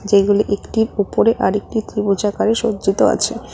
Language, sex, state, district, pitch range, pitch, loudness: Bengali, female, West Bengal, Cooch Behar, 200-220 Hz, 205 Hz, -17 LUFS